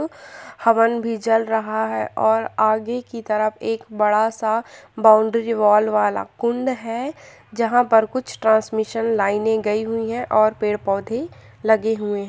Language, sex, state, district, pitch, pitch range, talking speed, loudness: Hindi, female, Chhattisgarh, Sukma, 220 Hz, 215-230 Hz, 145 wpm, -20 LUFS